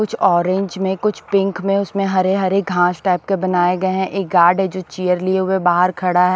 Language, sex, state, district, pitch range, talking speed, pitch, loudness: Hindi, female, Maharashtra, Washim, 180-195 Hz, 235 wpm, 185 Hz, -17 LUFS